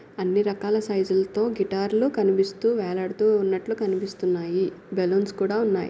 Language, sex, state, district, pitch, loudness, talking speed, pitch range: Telugu, female, Andhra Pradesh, Guntur, 195 Hz, -24 LUFS, 130 wpm, 190-215 Hz